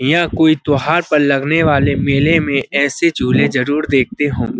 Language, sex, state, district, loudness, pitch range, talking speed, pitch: Hindi, male, Uttar Pradesh, Budaun, -14 LUFS, 140-155 Hz, 170 wpm, 145 Hz